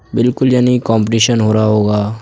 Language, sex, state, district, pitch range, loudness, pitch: Hindi, male, Uttar Pradesh, Budaun, 110-125 Hz, -13 LUFS, 115 Hz